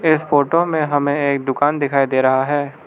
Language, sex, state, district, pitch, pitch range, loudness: Hindi, male, Arunachal Pradesh, Lower Dibang Valley, 145 Hz, 140-155 Hz, -17 LUFS